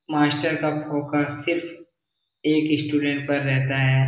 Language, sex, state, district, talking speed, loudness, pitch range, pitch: Hindi, male, Bihar, Jahanabad, 130 wpm, -23 LUFS, 145-155 Hz, 150 Hz